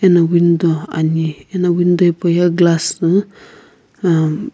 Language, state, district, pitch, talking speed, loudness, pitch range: Sumi, Nagaland, Kohima, 170 Hz, 130 wpm, -15 LUFS, 165-175 Hz